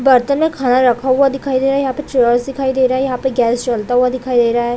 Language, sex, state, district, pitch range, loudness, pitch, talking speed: Hindi, female, Chhattisgarh, Bilaspur, 245-270 Hz, -15 LUFS, 255 Hz, 315 wpm